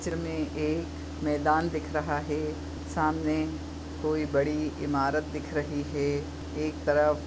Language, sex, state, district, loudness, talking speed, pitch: Hindi, female, Maharashtra, Chandrapur, -30 LUFS, 125 wpm, 140 Hz